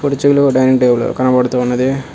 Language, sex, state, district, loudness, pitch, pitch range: Telugu, male, Telangana, Hyderabad, -13 LUFS, 130 Hz, 125-140 Hz